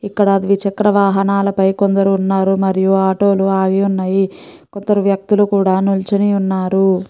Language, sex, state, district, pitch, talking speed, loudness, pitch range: Telugu, female, Andhra Pradesh, Guntur, 195 Hz, 135 wpm, -14 LUFS, 190-200 Hz